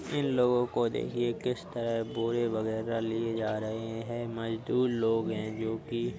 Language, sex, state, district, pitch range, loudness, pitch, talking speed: Hindi, male, Uttar Pradesh, Jyotiba Phule Nagar, 110-120 Hz, -31 LUFS, 115 Hz, 175 wpm